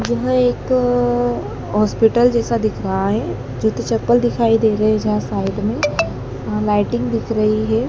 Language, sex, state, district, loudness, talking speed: Hindi, female, Madhya Pradesh, Dhar, -18 LUFS, 150 wpm